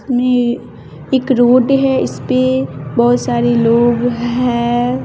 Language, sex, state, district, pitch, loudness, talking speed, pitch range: Hindi, male, Bihar, West Champaran, 240 Hz, -14 LUFS, 120 wpm, 235-250 Hz